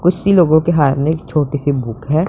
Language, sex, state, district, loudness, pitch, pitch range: Hindi, male, Punjab, Pathankot, -15 LUFS, 155 Hz, 145-170 Hz